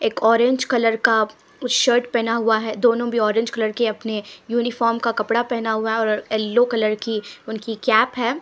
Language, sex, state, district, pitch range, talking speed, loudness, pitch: Hindi, female, Punjab, Pathankot, 220-240 Hz, 200 wpm, -20 LUFS, 225 Hz